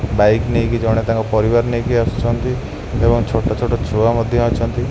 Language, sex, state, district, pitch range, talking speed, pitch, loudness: Odia, male, Odisha, Khordha, 110-120 Hz, 160 wpm, 115 Hz, -17 LUFS